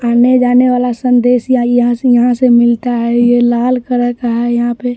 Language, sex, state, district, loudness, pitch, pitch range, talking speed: Hindi, male, Bihar, West Champaran, -11 LUFS, 245 Hz, 240-250 Hz, 215 wpm